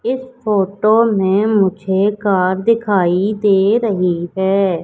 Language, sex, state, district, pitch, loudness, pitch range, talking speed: Hindi, female, Madhya Pradesh, Katni, 200 Hz, -15 LUFS, 190-215 Hz, 110 wpm